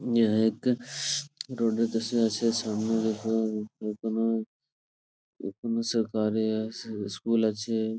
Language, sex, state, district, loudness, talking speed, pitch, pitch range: Bengali, male, West Bengal, Purulia, -28 LUFS, 85 wpm, 110 Hz, 110-115 Hz